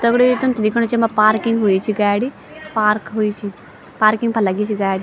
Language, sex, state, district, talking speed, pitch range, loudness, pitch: Garhwali, female, Uttarakhand, Tehri Garhwal, 215 wpm, 210-235 Hz, -17 LUFS, 215 Hz